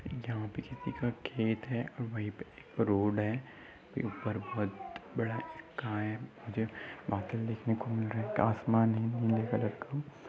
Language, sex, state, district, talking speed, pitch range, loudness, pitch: Hindi, male, Uttar Pradesh, Ghazipur, 150 wpm, 110-115 Hz, -35 LUFS, 110 Hz